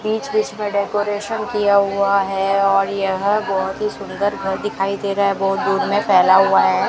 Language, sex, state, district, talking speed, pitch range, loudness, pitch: Hindi, female, Rajasthan, Bikaner, 200 wpm, 195-205 Hz, -18 LUFS, 200 Hz